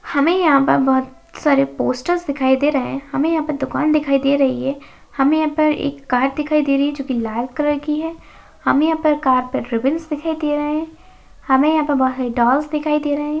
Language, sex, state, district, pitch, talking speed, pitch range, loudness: Hindi, female, Maharashtra, Sindhudurg, 285 Hz, 230 wpm, 270-305 Hz, -18 LUFS